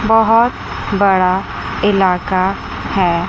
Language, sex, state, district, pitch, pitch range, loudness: Hindi, female, Chandigarh, Chandigarh, 195 Hz, 185-220 Hz, -15 LUFS